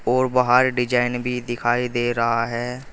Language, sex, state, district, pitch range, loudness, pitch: Hindi, male, Uttar Pradesh, Saharanpur, 120-125 Hz, -21 LUFS, 125 Hz